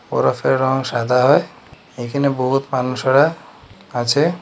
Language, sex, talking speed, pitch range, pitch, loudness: Bengali, male, 110 wpm, 125-140 Hz, 130 Hz, -17 LUFS